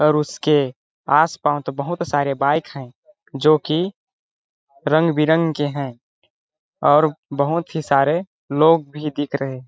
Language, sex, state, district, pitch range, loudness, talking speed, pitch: Hindi, male, Chhattisgarh, Balrampur, 140-160 Hz, -19 LUFS, 135 wpm, 150 Hz